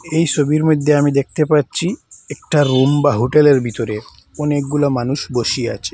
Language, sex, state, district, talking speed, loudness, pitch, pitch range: Bengali, male, Assam, Hailakandi, 150 wpm, -16 LUFS, 145 Hz, 130-150 Hz